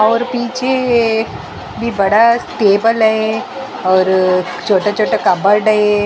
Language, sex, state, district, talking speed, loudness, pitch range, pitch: Hindi, female, Maharashtra, Mumbai Suburban, 110 wpm, -14 LUFS, 200-230 Hz, 215 Hz